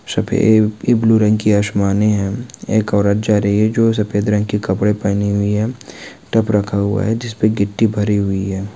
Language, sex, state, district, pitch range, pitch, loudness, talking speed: Hindi, male, West Bengal, Malda, 100-110 Hz, 105 Hz, -16 LUFS, 190 wpm